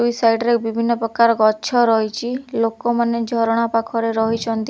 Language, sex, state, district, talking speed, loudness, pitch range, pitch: Odia, female, Odisha, Khordha, 140 wpm, -18 LUFS, 225-235 Hz, 230 Hz